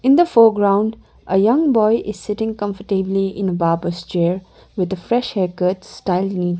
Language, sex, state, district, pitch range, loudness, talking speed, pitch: English, female, Sikkim, Gangtok, 180-220 Hz, -18 LUFS, 170 wpm, 195 Hz